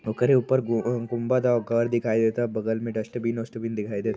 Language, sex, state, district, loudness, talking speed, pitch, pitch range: Bhojpuri, male, Uttar Pradesh, Varanasi, -25 LUFS, 230 wpm, 115 Hz, 110-120 Hz